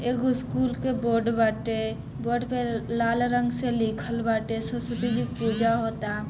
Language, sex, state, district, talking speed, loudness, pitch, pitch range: Bhojpuri, female, Bihar, Saran, 160 wpm, -27 LUFS, 230 Hz, 225-240 Hz